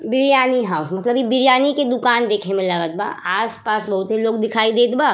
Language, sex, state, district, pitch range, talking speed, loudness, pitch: Bhojpuri, female, Uttar Pradesh, Ghazipur, 205-255 Hz, 210 wpm, -18 LUFS, 225 Hz